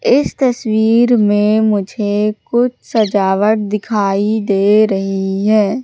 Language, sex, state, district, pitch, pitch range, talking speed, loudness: Hindi, female, Madhya Pradesh, Katni, 210 Hz, 205-220 Hz, 105 wpm, -14 LUFS